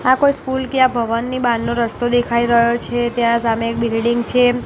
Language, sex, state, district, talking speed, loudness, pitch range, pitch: Gujarati, female, Gujarat, Gandhinagar, 195 wpm, -17 LUFS, 235-250 Hz, 240 Hz